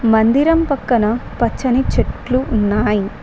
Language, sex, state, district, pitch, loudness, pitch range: Telugu, female, Telangana, Mahabubabad, 240 Hz, -16 LUFS, 215-260 Hz